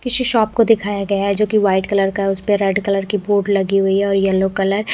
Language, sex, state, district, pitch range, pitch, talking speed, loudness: Hindi, female, Odisha, Khordha, 195-205 Hz, 200 Hz, 280 wpm, -17 LUFS